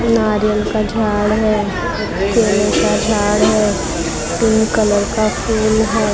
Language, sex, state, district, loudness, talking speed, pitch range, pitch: Hindi, female, Maharashtra, Mumbai Suburban, -15 LUFS, 125 wpm, 205-220 Hz, 215 Hz